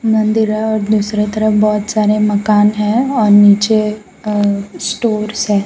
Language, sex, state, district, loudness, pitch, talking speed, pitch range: Hindi, female, Gujarat, Valsad, -13 LUFS, 210 Hz, 150 wpm, 205-215 Hz